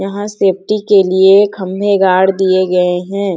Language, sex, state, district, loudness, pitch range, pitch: Hindi, female, Chhattisgarh, Sarguja, -12 LUFS, 185-200 Hz, 195 Hz